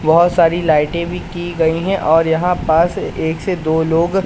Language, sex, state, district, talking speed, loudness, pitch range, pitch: Hindi, male, Madhya Pradesh, Katni, 195 wpm, -16 LUFS, 160-175 Hz, 165 Hz